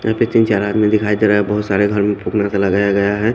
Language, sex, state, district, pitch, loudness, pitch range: Hindi, male, Odisha, Khordha, 105 Hz, -15 LUFS, 100-105 Hz